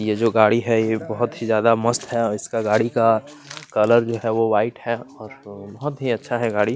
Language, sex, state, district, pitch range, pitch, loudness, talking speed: Hindi, male, Chhattisgarh, Kabirdham, 110-120 Hz, 115 Hz, -20 LUFS, 220 wpm